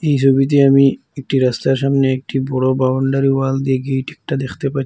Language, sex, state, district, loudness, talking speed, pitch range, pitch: Bengali, male, Assam, Hailakandi, -16 LUFS, 185 wpm, 130-135 Hz, 135 Hz